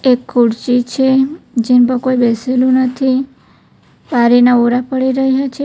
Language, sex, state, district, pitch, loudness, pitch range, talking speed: Gujarati, female, Gujarat, Valsad, 255 Hz, -13 LUFS, 245-265 Hz, 140 wpm